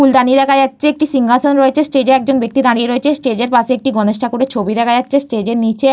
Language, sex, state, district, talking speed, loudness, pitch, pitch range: Bengali, female, West Bengal, Paschim Medinipur, 210 wpm, -13 LUFS, 260 Hz, 240-275 Hz